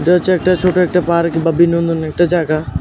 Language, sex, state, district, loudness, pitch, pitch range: Bengali, male, Tripura, West Tripura, -14 LUFS, 170 Hz, 165-180 Hz